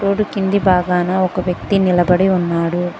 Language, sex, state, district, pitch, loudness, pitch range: Telugu, female, Telangana, Mahabubabad, 185 Hz, -16 LUFS, 175-195 Hz